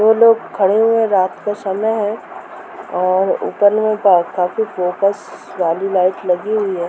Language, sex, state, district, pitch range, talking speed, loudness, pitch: Hindi, female, Bihar, Muzaffarpur, 185-220 Hz, 200 wpm, -16 LUFS, 200 Hz